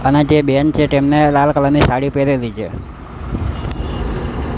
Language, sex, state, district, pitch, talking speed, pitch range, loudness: Gujarati, male, Gujarat, Gandhinagar, 140 Hz, 145 wpm, 120-145 Hz, -15 LUFS